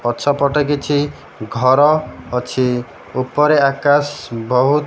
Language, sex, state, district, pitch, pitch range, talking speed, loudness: Odia, male, Odisha, Malkangiri, 140 Hz, 125-145 Hz, 100 wpm, -16 LUFS